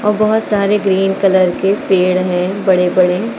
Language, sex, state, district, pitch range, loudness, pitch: Hindi, female, Uttar Pradesh, Lucknow, 185-205 Hz, -13 LUFS, 195 Hz